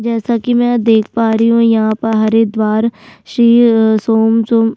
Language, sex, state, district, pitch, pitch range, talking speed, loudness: Hindi, female, Uttarakhand, Tehri Garhwal, 225 Hz, 220-230 Hz, 215 wpm, -12 LUFS